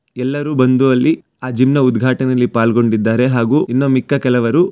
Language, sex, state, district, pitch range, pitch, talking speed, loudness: Kannada, male, Karnataka, Mysore, 120-135 Hz, 130 Hz, 140 wpm, -14 LUFS